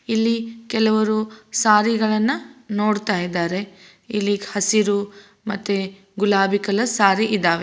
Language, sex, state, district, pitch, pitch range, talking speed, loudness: Kannada, female, Karnataka, Raichur, 210 Hz, 200-220 Hz, 95 wpm, -20 LUFS